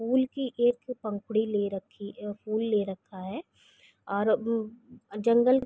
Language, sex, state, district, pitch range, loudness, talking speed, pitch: Hindi, female, Chhattisgarh, Raigarh, 205-240 Hz, -29 LUFS, 160 wpm, 220 Hz